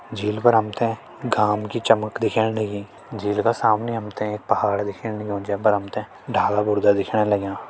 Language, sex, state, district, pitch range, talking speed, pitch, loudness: Hindi, male, Uttarakhand, Tehri Garhwal, 105-110 Hz, 200 wpm, 105 Hz, -22 LUFS